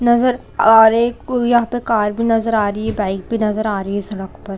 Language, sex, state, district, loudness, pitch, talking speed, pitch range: Hindi, female, Chhattisgarh, Korba, -16 LUFS, 225 Hz, 250 wpm, 205-235 Hz